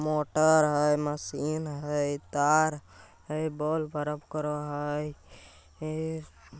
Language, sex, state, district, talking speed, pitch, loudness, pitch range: Magahi, male, Bihar, Jamui, 100 wpm, 150 Hz, -29 LUFS, 145-155 Hz